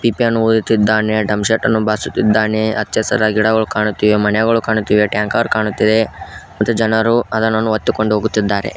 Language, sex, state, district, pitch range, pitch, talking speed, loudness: Kannada, male, Karnataka, Koppal, 105-110 Hz, 110 Hz, 130 wpm, -15 LUFS